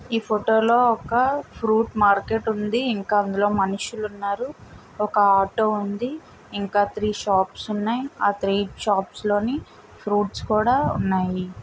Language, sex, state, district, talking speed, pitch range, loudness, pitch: Telugu, female, Andhra Pradesh, Visakhapatnam, 145 wpm, 200-225 Hz, -22 LUFS, 210 Hz